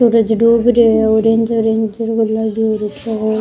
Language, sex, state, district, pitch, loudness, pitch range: Rajasthani, female, Rajasthan, Churu, 225 Hz, -14 LUFS, 220-230 Hz